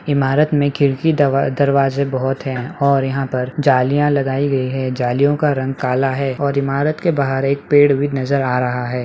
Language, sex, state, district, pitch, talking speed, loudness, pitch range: Hindi, male, Bihar, Kishanganj, 140 Hz, 200 wpm, -17 LUFS, 130-140 Hz